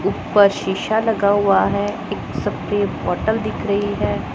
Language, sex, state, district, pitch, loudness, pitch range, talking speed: Hindi, male, Punjab, Pathankot, 205 Hz, -19 LUFS, 200-215 Hz, 150 wpm